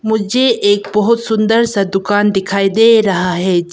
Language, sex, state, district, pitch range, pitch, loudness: Hindi, female, Arunachal Pradesh, Papum Pare, 195-225 Hz, 205 Hz, -13 LUFS